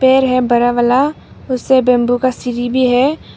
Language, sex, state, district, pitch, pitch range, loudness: Hindi, female, Arunachal Pradesh, Papum Pare, 255 Hz, 245-260 Hz, -14 LUFS